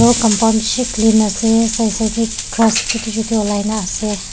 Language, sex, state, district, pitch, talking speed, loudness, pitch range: Nagamese, female, Nagaland, Dimapur, 225 Hz, 180 wpm, -15 LUFS, 215-225 Hz